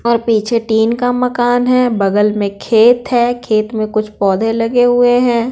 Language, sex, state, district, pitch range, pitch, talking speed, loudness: Hindi, female, Bihar, Patna, 215-245 Hz, 235 Hz, 185 wpm, -13 LUFS